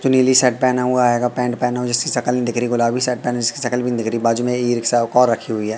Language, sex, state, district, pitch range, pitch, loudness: Hindi, male, Madhya Pradesh, Katni, 120-125 Hz, 125 Hz, -18 LUFS